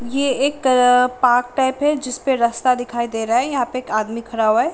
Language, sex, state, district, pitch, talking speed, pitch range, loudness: Hindi, female, Bihar, Sitamarhi, 250 Hz, 240 wpm, 235-265 Hz, -18 LUFS